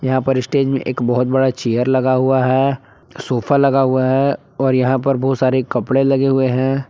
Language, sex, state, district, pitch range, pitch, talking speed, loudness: Hindi, male, Jharkhand, Palamu, 130-135 Hz, 130 Hz, 210 wpm, -16 LUFS